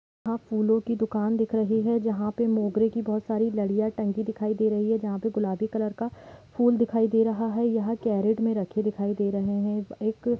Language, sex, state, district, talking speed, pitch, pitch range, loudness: Hindi, female, Jharkhand, Sahebganj, 220 wpm, 220 Hz, 210-225 Hz, -26 LUFS